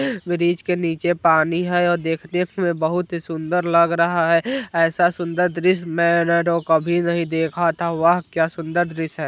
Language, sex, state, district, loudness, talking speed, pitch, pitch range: Bajjika, male, Bihar, Vaishali, -20 LUFS, 180 wpm, 170 Hz, 165-175 Hz